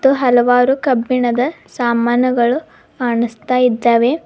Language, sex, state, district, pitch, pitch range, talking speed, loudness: Kannada, female, Karnataka, Bidar, 245 Hz, 240-255 Hz, 70 wpm, -15 LUFS